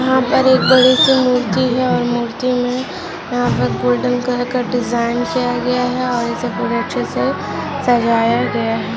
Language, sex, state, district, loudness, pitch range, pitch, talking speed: Hindi, female, Jharkhand, Jamtara, -16 LUFS, 240-255 Hz, 245 Hz, 180 wpm